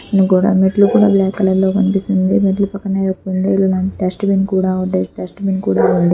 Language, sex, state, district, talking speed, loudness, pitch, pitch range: Telugu, female, Andhra Pradesh, Guntur, 185 wpm, -15 LUFS, 190 Hz, 185-195 Hz